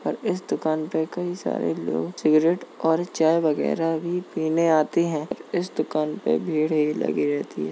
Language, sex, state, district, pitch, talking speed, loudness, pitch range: Hindi, male, Uttar Pradesh, Jalaun, 155 Hz, 180 wpm, -24 LUFS, 150-165 Hz